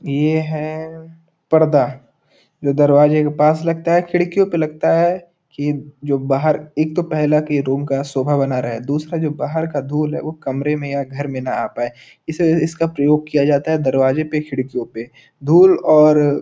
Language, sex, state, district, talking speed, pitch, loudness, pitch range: Hindi, male, Uttar Pradesh, Gorakhpur, 195 wpm, 150 Hz, -17 LUFS, 140-160 Hz